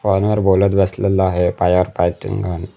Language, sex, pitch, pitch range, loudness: Marathi, male, 95 Hz, 90-100 Hz, -17 LUFS